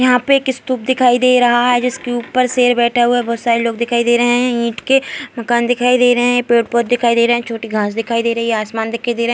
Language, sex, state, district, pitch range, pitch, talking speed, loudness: Hindi, female, Bihar, Muzaffarpur, 235-250 Hz, 240 Hz, 285 wpm, -15 LUFS